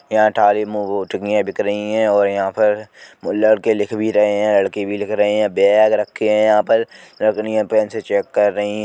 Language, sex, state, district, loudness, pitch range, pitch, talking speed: Bundeli, male, Uttar Pradesh, Jalaun, -17 LUFS, 105-110 Hz, 105 Hz, 205 wpm